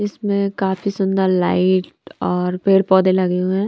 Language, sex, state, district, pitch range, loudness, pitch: Hindi, female, Punjab, Kapurthala, 185-200 Hz, -18 LUFS, 190 Hz